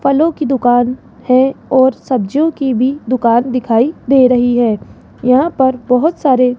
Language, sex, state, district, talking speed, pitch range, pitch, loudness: Hindi, female, Rajasthan, Jaipur, 165 wpm, 245-270 Hz, 255 Hz, -13 LUFS